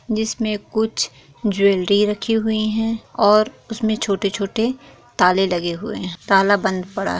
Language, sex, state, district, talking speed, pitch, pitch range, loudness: Hindi, female, Bihar, East Champaran, 160 wpm, 210 Hz, 195-220 Hz, -19 LUFS